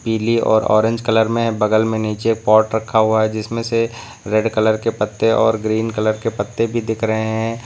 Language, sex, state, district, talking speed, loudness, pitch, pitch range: Hindi, male, Uttar Pradesh, Lucknow, 210 wpm, -17 LUFS, 110 Hz, 110-115 Hz